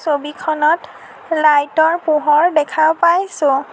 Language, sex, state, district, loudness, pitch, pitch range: Assamese, female, Assam, Sonitpur, -15 LUFS, 310 Hz, 295-330 Hz